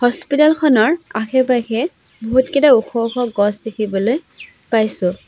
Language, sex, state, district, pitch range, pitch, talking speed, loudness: Assamese, female, Assam, Sonitpur, 220-275 Hz, 240 Hz, 115 wpm, -16 LUFS